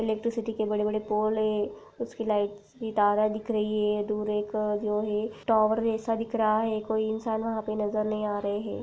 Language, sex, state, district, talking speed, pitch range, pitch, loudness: Hindi, female, Uttar Pradesh, Jalaun, 210 wpm, 210-220 Hz, 215 Hz, -28 LUFS